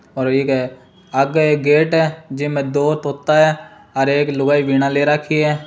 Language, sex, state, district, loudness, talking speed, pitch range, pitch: Marwari, male, Rajasthan, Churu, -16 LUFS, 180 wpm, 135-150 Hz, 145 Hz